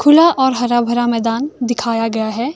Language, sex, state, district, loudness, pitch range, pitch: Hindi, female, Himachal Pradesh, Shimla, -15 LUFS, 230-265 Hz, 240 Hz